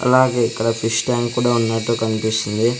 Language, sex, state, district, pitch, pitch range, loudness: Telugu, male, Andhra Pradesh, Sri Satya Sai, 115 Hz, 110-120 Hz, -18 LUFS